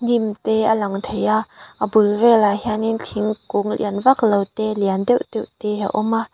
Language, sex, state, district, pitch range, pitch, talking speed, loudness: Mizo, female, Mizoram, Aizawl, 205-225 Hz, 215 Hz, 220 wpm, -19 LUFS